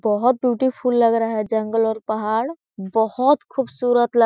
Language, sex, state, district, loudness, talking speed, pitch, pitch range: Hindi, female, Chhattisgarh, Korba, -20 LUFS, 170 wpm, 230 Hz, 220-250 Hz